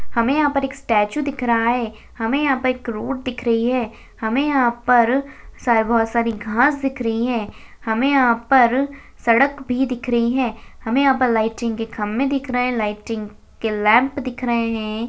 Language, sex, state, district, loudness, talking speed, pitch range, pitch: Hindi, female, Chhattisgarh, Jashpur, -19 LUFS, 195 wpm, 225-265 Hz, 240 Hz